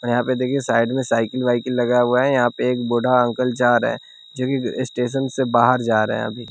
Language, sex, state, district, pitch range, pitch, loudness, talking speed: Hindi, male, Bihar, West Champaran, 120-130 Hz, 125 Hz, -19 LUFS, 260 wpm